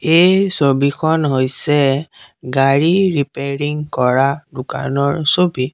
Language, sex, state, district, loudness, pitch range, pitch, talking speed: Assamese, male, Assam, Sonitpur, -16 LUFS, 135-160 Hz, 145 Hz, 85 wpm